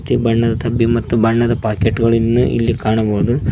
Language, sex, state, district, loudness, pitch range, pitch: Kannada, male, Karnataka, Koppal, -15 LUFS, 115-120 Hz, 115 Hz